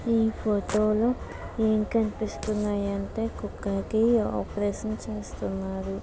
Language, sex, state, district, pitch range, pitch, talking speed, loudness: Telugu, female, Andhra Pradesh, Visakhapatnam, 200-220 Hz, 210 Hz, 80 wpm, -28 LUFS